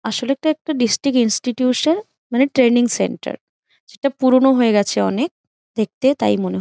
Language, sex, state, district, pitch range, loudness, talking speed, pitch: Bengali, female, West Bengal, Jhargram, 220-275 Hz, -17 LUFS, 165 wpm, 250 Hz